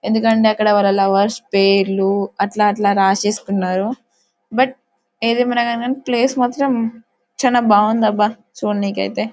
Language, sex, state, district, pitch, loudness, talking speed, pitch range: Telugu, female, Telangana, Karimnagar, 215 Hz, -17 LUFS, 115 wpm, 200-240 Hz